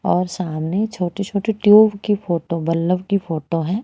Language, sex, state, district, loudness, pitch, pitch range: Hindi, female, Haryana, Rohtak, -19 LUFS, 185 Hz, 165-205 Hz